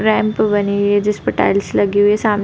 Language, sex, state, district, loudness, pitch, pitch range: Hindi, female, Uttar Pradesh, Deoria, -15 LUFS, 205 Hz, 200-215 Hz